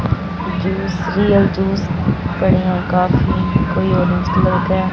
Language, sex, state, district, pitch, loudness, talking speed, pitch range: Hindi, female, Punjab, Fazilka, 190 Hz, -16 LUFS, 110 wpm, 180-195 Hz